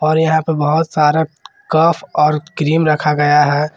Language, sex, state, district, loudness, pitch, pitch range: Hindi, male, Jharkhand, Ranchi, -14 LUFS, 155 Hz, 150-160 Hz